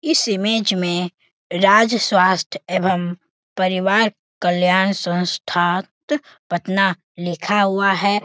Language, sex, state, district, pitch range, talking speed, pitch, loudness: Hindi, male, Bihar, Sitamarhi, 180-205 Hz, 95 wpm, 190 Hz, -18 LUFS